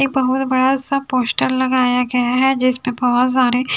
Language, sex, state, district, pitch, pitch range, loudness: Hindi, female, Haryana, Charkhi Dadri, 255 Hz, 250-265 Hz, -17 LUFS